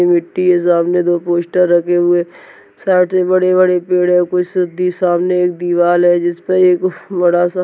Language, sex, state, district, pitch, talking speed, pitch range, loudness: Hindi, male, Uttar Pradesh, Jyotiba Phule Nagar, 180 Hz, 195 wpm, 175-180 Hz, -14 LUFS